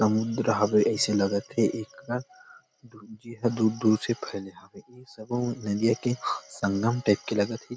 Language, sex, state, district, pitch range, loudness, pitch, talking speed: Chhattisgarhi, male, Chhattisgarh, Rajnandgaon, 105-120 Hz, -27 LUFS, 110 Hz, 170 wpm